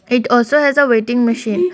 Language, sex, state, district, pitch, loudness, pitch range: English, female, Assam, Kamrup Metropolitan, 240 Hz, -14 LUFS, 225-250 Hz